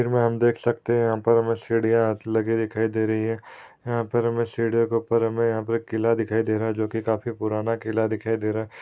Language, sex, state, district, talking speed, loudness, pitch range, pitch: Hindi, male, Maharashtra, Chandrapur, 260 wpm, -24 LUFS, 110-115 Hz, 115 Hz